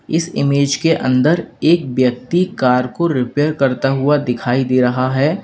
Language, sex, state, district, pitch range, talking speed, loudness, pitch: Hindi, male, Uttar Pradesh, Lalitpur, 130-160 Hz, 165 wpm, -16 LUFS, 135 Hz